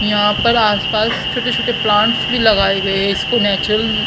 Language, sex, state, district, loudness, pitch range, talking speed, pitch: Hindi, female, Haryana, Charkhi Dadri, -14 LUFS, 205-235 Hz, 175 wpm, 215 Hz